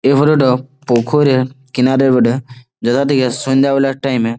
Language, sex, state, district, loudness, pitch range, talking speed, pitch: Bengali, male, West Bengal, Malda, -14 LUFS, 125-135 Hz, 165 wpm, 130 Hz